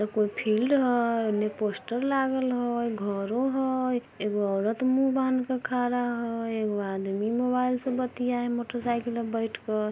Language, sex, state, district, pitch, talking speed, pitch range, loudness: Maithili, female, Bihar, Samastipur, 240 Hz, 155 wpm, 215-250 Hz, -28 LUFS